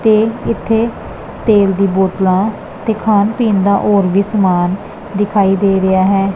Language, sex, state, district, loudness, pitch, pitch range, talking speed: Punjabi, female, Punjab, Pathankot, -14 LUFS, 200 Hz, 195-215 Hz, 150 wpm